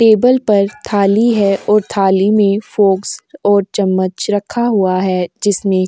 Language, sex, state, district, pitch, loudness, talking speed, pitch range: Hindi, female, Uttar Pradesh, Jyotiba Phule Nagar, 200 Hz, -14 LUFS, 155 wpm, 190-210 Hz